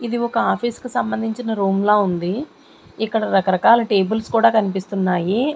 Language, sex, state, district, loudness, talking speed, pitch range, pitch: Telugu, female, Andhra Pradesh, Sri Satya Sai, -19 LUFS, 140 wpm, 195-235 Hz, 220 Hz